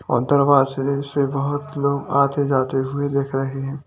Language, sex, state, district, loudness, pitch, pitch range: Hindi, male, Uttar Pradesh, Lalitpur, -20 LUFS, 140 Hz, 135-140 Hz